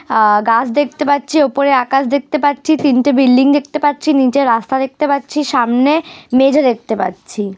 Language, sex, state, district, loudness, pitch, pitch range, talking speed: Bengali, female, West Bengal, Dakshin Dinajpur, -13 LUFS, 270 Hz, 250-290 Hz, 160 wpm